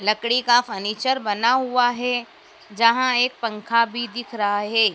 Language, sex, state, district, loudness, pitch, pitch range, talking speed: Hindi, female, Madhya Pradesh, Dhar, -21 LUFS, 235 Hz, 215-245 Hz, 155 wpm